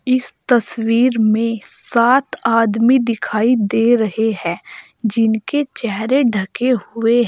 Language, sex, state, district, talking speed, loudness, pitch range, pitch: Hindi, female, Uttar Pradesh, Saharanpur, 115 wpm, -16 LUFS, 220-245 Hz, 230 Hz